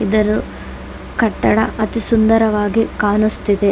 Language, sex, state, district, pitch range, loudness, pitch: Kannada, female, Karnataka, Dakshina Kannada, 205-225 Hz, -16 LUFS, 215 Hz